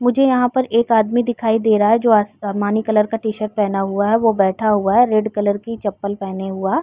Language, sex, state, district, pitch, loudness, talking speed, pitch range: Hindi, female, Uttar Pradesh, Jyotiba Phule Nagar, 215 Hz, -17 LUFS, 245 wpm, 205-230 Hz